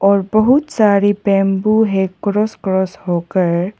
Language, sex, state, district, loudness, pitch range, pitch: Hindi, female, Arunachal Pradesh, Papum Pare, -15 LUFS, 190-215 Hz, 200 Hz